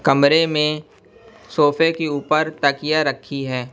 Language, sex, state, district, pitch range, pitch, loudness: Hindi, male, Bihar, West Champaran, 140-155 Hz, 150 Hz, -19 LUFS